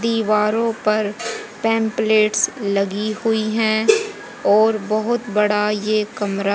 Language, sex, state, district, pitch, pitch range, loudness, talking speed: Hindi, female, Haryana, Jhajjar, 215 Hz, 210-225 Hz, -19 LUFS, 100 wpm